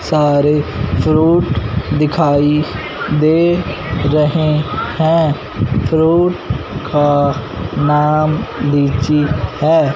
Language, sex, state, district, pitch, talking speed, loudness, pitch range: Hindi, male, Punjab, Fazilka, 150 Hz, 65 wpm, -14 LUFS, 140-155 Hz